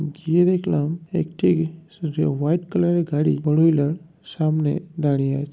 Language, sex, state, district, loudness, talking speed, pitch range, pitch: Bengali, male, West Bengal, North 24 Parganas, -21 LUFS, 140 wpm, 150-175 Hz, 160 Hz